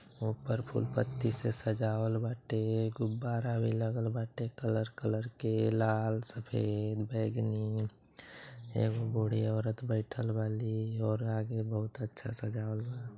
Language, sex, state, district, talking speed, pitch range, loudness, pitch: Bhojpuri, male, Uttar Pradesh, Deoria, 120 wpm, 110-115 Hz, -34 LUFS, 110 Hz